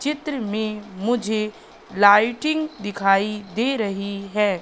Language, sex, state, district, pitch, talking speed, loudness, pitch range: Hindi, female, Madhya Pradesh, Katni, 215 Hz, 105 wpm, -21 LUFS, 200-240 Hz